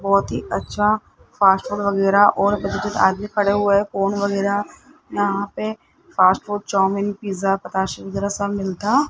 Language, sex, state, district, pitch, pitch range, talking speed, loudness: Hindi, male, Rajasthan, Jaipur, 200 Hz, 195-205 Hz, 150 wpm, -20 LUFS